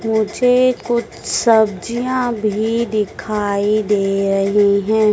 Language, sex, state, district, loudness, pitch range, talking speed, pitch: Hindi, female, Madhya Pradesh, Dhar, -17 LUFS, 205-235 Hz, 95 wpm, 215 Hz